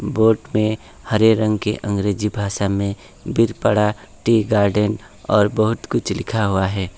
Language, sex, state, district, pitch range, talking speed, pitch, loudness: Hindi, male, West Bengal, Alipurduar, 100-110 Hz, 155 wpm, 105 Hz, -19 LUFS